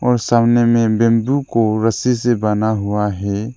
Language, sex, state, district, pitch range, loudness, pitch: Hindi, male, Arunachal Pradesh, Lower Dibang Valley, 110-120 Hz, -16 LUFS, 115 Hz